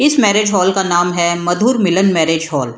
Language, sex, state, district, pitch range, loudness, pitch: Hindi, female, Bihar, Gaya, 170-205 Hz, -14 LUFS, 180 Hz